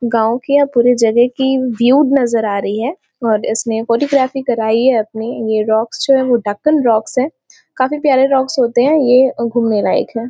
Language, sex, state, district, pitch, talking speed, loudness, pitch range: Hindi, female, Chhattisgarh, Korba, 240 Hz, 180 wpm, -14 LUFS, 225-265 Hz